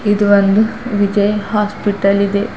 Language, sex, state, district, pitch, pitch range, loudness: Kannada, female, Karnataka, Bidar, 205 Hz, 200-210 Hz, -14 LUFS